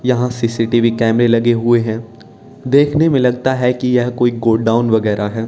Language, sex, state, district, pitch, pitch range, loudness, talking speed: Hindi, male, Haryana, Jhajjar, 120 Hz, 115-125 Hz, -14 LUFS, 175 wpm